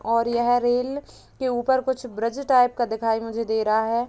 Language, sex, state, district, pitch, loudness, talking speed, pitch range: Hindi, female, Uttar Pradesh, Jalaun, 240 Hz, -23 LUFS, 205 wpm, 225-250 Hz